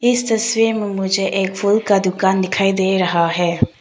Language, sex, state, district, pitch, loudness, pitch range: Hindi, female, Arunachal Pradesh, Papum Pare, 195 Hz, -17 LUFS, 185-210 Hz